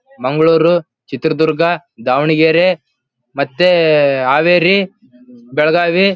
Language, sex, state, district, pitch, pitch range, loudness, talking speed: Kannada, male, Karnataka, Bellary, 165 Hz, 150-180 Hz, -13 LUFS, 60 wpm